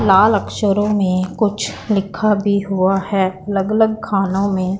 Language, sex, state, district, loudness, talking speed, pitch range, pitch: Hindi, female, Punjab, Pathankot, -17 LUFS, 150 wpm, 190-210 Hz, 200 Hz